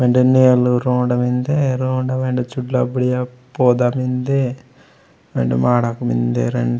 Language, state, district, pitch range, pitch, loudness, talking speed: Gondi, Chhattisgarh, Sukma, 125-130 Hz, 125 Hz, -17 LUFS, 125 wpm